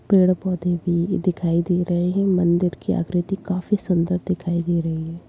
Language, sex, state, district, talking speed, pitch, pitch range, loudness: Kumaoni, female, Uttarakhand, Tehri Garhwal, 160 wpm, 180 Hz, 175-185 Hz, -21 LUFS